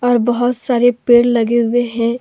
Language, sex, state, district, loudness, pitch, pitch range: Hindi, female, Jharkhand, Deoghar, -14 LUFS, 240 Hz, 235-245 Hz